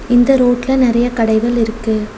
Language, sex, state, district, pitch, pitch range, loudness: Tamil, female, Tamil Nadu, Nilgiris, 240 Hz, 225-245 Hz, -14 LUFS